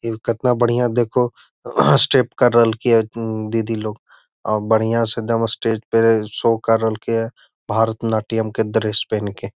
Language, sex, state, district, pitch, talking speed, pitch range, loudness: Magahi, male, Bihar, Gaya, 115 Hz, 170 wpm, 110-115 Hz, -18 LUFS